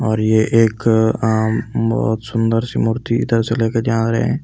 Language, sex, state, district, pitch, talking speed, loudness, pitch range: Hindi, male, Delhi, New Delhi, 115 Hz, 215 wpm, -17 LUFS, 110-115 Hz